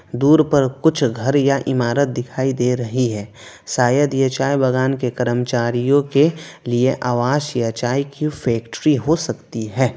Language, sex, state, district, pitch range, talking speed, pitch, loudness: Hindi, male, West Bengal, Alipurduar, 120-140 Hz, 155 wpm, 130 Hz, -18 LUFS